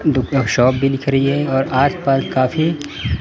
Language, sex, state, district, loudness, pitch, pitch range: Hindi, male, Chandigarh, Chandigarh, -17 LUFS, 135 Hz, 130-145 Hz